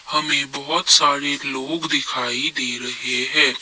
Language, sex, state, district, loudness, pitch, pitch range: Hindi, male, Assam, Kamrup Metropolitan, -19 LUFS, 140 Hz, 125-145 Hz